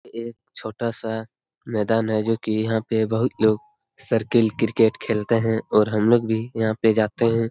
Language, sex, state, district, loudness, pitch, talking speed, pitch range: Hindi, male, Bihar, Araria, -22 LUFS, 110 Hz, 185 wpm, 110-115 Hz